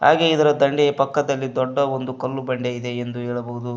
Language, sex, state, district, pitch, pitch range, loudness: Kannada, male, Karnataka, Koppal, 130 Hz, 120-140 Hz, -21 LUFS